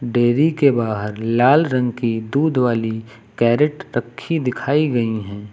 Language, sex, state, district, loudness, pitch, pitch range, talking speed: Hindi, male, Uttar Pradesh, Lucknow, -18 LUFS, 120 Hz, 115-145 Hz, 140 wpm